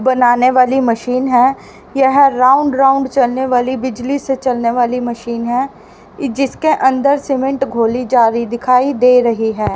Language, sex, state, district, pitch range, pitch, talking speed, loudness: Hindi, female, Haryana, Rohtak, 240-270 Hz, 255 Hz, 155 wpm, -14 LUFS